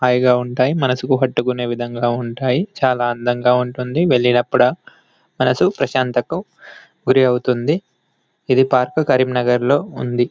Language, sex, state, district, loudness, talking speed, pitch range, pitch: Telugu, male, Telangana, Karimnagar, -17 LUFS, 115 wpm, 125-130 Hz, 125 Hz